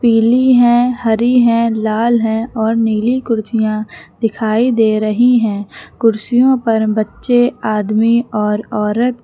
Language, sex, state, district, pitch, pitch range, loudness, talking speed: Hindi, female, Uttar Pradesh, Lucknow, 225 Hz, 215-240 Hz, -14 LUFS, 130 wpm